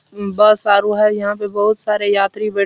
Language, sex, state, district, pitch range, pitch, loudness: Hindi, male, Bihar, Supaul, 205-210 Hz, 205 Hz, -15 LUFS